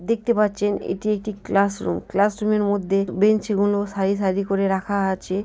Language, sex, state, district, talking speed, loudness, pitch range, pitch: Bengali, female, West Bengal, Jhargram, 210 wpm, -22 LUFS, 195-210 Hz, 200 Hz